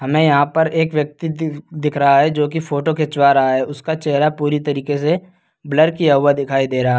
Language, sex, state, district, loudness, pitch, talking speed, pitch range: Hindi, male, Uttar Pradesh, Lucknow, -17 LUFS, 150 Hz, 230 wpm, 140-160 Hz